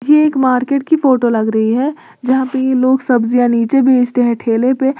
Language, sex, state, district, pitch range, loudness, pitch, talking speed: Hindi, female, Uttar Pradesh, Lalitpur, 245-270 Hz, -13 LUFS, 255 Hz, 215 wpm